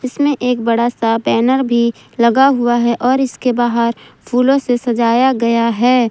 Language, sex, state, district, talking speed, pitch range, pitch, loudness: Hindi, female, Jharkhand, Ranchi, 165 wpm, 235-255 Hz, 240 Hz, -14 LUFS